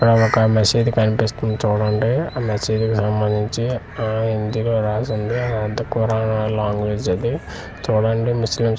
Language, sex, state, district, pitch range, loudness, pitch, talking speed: Telugu, male, Andhra Pradesh, Manyam, 105-115 Hz, -20 LUFS, 110 Hz, 135 wpm